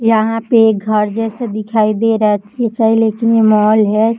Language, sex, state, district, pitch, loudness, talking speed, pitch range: Hindi, female, Bihar, Jahanabad, 220 Hz, -13 LUFS, 170 wpm, 215-225 Hz